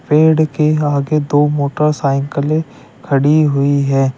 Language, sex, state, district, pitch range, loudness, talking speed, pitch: Hindi, male, Uttar Pradesh, Shamli, 140-155 Hz, -14 LUFS, 115 wpm, 145 Hz